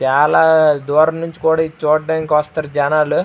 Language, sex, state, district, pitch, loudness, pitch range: Telugu, male, Andhra Pradesh, Srikakulam, 155 Hz, -15 LUFS, 150-160 Hz